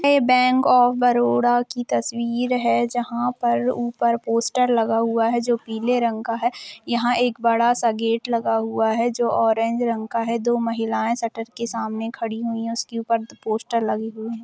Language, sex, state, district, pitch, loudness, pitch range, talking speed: Hindi, female, Chhattisgarh, Rajnandgaon, 235 Hz, -21 LUFS, 225-240 Hz, 190 wpm